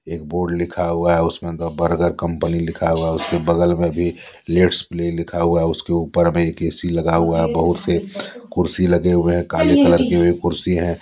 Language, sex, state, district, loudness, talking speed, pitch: Hindi, male, Jharkhand, Deoghar, -18 LUFS, 220 wpm, 85 Hz